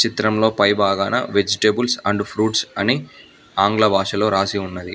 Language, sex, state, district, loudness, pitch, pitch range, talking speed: Telugu, male, Telangana, Hyderabad, -18 LUFS, 105 Hz, 100-110 Hz, 135 wpm